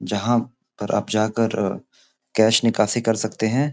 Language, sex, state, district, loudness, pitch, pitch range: Hindi, male, Uttar Pradesh, Gorakhpur, -21 LUFS, 115 Hz, 110-120 Hz